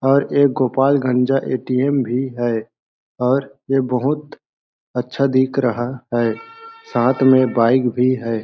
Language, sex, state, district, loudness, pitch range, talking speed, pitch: Hindi, male, Chhattisgarh, Balrampur, -18 LUFS, 125-135 Hz, 135 wpm, 130 Hz